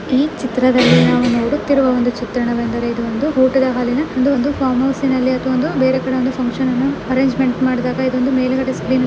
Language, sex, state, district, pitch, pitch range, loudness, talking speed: Kannada, female, Karnataka, Mysore, 255 Hz, 250-265 Hz, -16 LUFS, 165 wpm